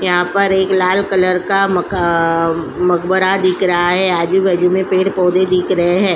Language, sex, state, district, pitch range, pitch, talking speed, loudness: Hindi, female, Uttar Pradesh, Jyotiba Phule Nagar, 180-190 Hz, 185 Hz, 185 wpm, -14 LUFS